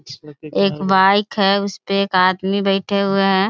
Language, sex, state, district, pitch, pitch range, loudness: Hindi, female, Bihar, Jamui, 195 Hz, 185-200 Hz, -17 LUFS